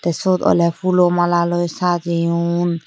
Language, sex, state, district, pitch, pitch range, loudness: Chakma, female, Tripura, Unakoti, 175 Hz, 170-175 Hz, -17 LUFS